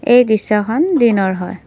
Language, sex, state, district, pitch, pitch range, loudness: Assamese, female, Assam, Kamrup Metropolitan, 225 Hz, 205-250 Hz, -14 LUFS